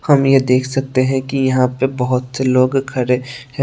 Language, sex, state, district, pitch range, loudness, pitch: Hindi, male, Tripura, West Tripura, 125-135 Hz, -16 LUFS, 130 Hz